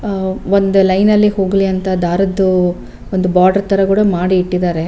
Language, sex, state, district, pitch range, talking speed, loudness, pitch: Kannada, female, Karnataka, Bellary, 185-195 Hz, 150 wpm, -14 LUFS, 190 Hz